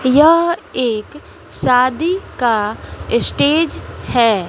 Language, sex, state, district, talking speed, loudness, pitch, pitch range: Hindi, female, Bihar, West Champaran, 80 wpm, -16 LUFS, 255 Hz, 230-325 Hz